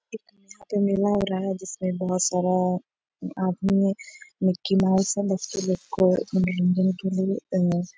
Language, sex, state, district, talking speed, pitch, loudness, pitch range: Hindi, female, Bihar, Bhagalpur, 160 wpm, 190 Hz, -24 LUFS, 185-195 Hz